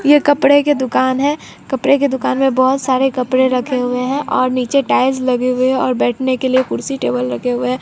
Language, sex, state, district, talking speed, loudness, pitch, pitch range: Hindi, female, Bihar, Katihar, 225 wpm, -15 LUFS, 260 Hz, 255-275 Hz